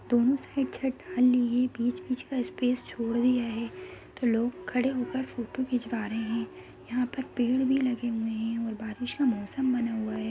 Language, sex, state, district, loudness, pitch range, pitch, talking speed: Hindi, female, Bihar, Jamui, -29 LUFS, 230-260 Hz, 245 Hz, 210 wpm